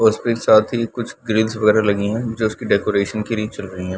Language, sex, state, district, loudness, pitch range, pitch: Hindi, male, Chhattisgarh, Bilaspur, -19 LUFS, 105-115 Hz, 110 Hz